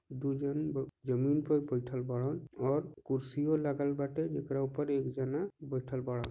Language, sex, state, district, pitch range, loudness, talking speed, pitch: Bhojpuri, male, Jharkhand, Sahebganj, 130-150 Hz, -35 LUFS, 150 wpm, 140 Hz